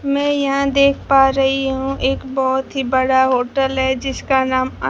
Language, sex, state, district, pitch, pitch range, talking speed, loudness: Hindi, female, Bihar, Kaimur, 270 Hz, 260-275 Hz, 185 wpm, -17 LUFS